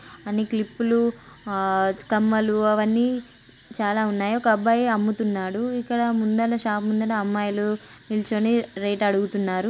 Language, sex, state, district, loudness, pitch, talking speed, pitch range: Telugu, female, Telangana, Nalgonda, -23 LUFS, 215 Hz, 125 wpm, 205-230 Hz